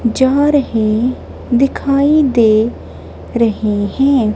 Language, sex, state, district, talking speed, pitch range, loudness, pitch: Hindi, male, Punjab, Kapurthala, 80 wpm, 220-275 Hz, -14 LUFS, 245 Hz